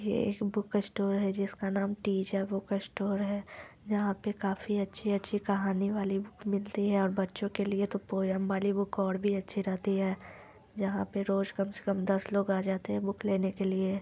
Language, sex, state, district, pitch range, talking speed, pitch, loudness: Hindi, female, Bihar, Lakhisarai, 195-205 Hz, 205 wpm, 200 Hz, -32 LUFS